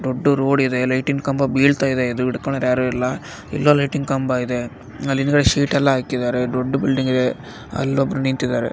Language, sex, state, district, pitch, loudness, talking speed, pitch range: Kannada, male, Karnataka, Raichur, 130 Hz, -19 LUFS, 180 wpm, 125-140 Hz